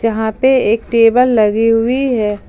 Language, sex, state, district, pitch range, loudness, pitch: Hindi, female, Jharkhand, Ranchi, 220-250 Hz, -13 LUFS, 225 Hz